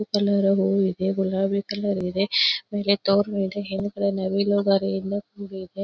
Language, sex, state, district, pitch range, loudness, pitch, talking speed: Kannada, female, Karnataka, Belgaum, 195-200 Hz, -23 LUFS, 200 Hz, 135 wpm